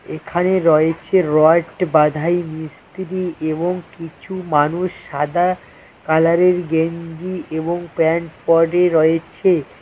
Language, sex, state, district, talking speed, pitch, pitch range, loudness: Bengali, male, West Bengal, Cooch Behar, 90 wpm, 165 Hz, 160-180 Hz, -17 LUFS